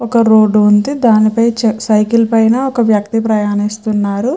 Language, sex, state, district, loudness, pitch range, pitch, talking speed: Telugu, female, Andhra Pradesh, Chittoor, -12 LUFS, 210-230 Hz, 220 Hz, 135 wpm